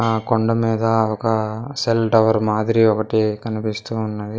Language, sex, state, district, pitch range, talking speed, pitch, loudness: Telugu, male, Andhra Pradesh, Manyam, 110-115 Hz, 135 wpm, 110 Hz, -19 LUFS